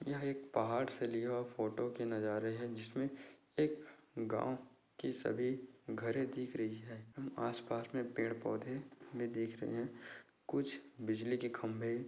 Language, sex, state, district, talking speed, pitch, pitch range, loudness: Hindi, male, Chhattisgarh, Korba, 160 wpm, 120 Hz, 115-130 Hz, -41 LUFS